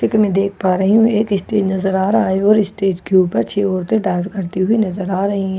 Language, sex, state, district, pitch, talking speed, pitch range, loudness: Hindi, female, Bihar, Katihar, 195 Hz, 255 wpm, 190-210 Hz, -16 LUFS